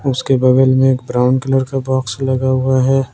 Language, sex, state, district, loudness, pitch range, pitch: Hindi, male, Jharkhand, Ranchi, -14 LUFS, 130-135 Hz, 130 Hz